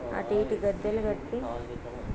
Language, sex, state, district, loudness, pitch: Telugu, female, Andhra Pradesh, Krishna, -31 LUFS, 200 Hz